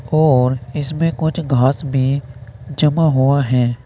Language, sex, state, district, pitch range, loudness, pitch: Hindi, male, Uttar Pradesh, Saharanpur, 125-150 Hz, -16 LUFS, 135 Hz